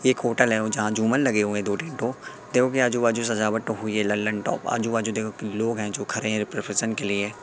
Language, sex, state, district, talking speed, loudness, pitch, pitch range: Hindi, male, Madhya Pradesh, Katni, 260 wpm, -24 LUFS, 110 Hz, 105-115 Hz